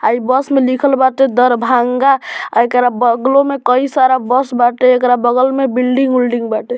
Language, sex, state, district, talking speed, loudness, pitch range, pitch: Bhojpuri, male, Bihar, Muzaffarpur, 175 wpm, -13 LUFS, 245-270 Hz, 255 Hz